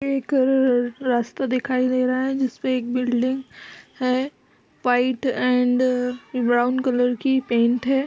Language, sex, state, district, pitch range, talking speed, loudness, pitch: Hindi, female, Uttar Pradesh, Budaun, 245-265 Hz, 140 wpm, -21 LUFS, 255 Hz